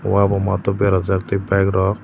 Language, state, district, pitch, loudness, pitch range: Kokborok, Tripura, Dhalai, 100 Hz, -18 LUFS, 95-100 Hz